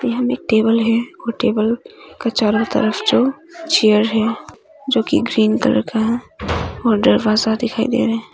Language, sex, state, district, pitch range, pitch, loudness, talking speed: Hindi, female, Arunachal Pradesh, Longding, 220-250 Hz, 230 Hz, -17 LUFS, 175 wpm